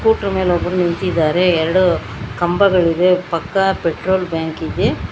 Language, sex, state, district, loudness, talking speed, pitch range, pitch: Kannada, female, Karnataka, Bangalore, -16 LUFS, 115 wpm, 165-185 Hz, 180 Hz